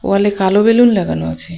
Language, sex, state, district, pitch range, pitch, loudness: Bengali, female, West Bengal, Cooch Behar, 145-205 Hz, 195 Hz, -13 LUFS